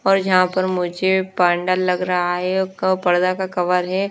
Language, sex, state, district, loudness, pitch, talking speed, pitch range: Hindi, female, Odisha, Nuapada, -19 LUFS, 185 Hz, 190 wpm, 180-190 Hz